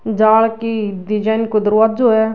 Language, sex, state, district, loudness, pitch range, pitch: Rajasthani, female, Rajasthan, Nagaur, -15 LUFS, 215-225 Hz, 220 Hz